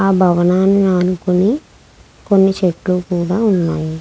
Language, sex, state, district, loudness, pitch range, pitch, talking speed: Telugu, female, Andhra Pradesh, Krishna, -15 LUFS, 180-195 Hz, 185 Hz, 105 wpm